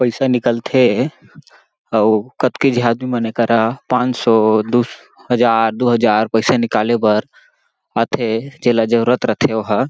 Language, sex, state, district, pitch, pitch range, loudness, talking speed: Chhattisgarhi, male, Chhattisgarh, Jashpur, 120 Hz, 110-125 Hz, -16 LUFS, 135 wpm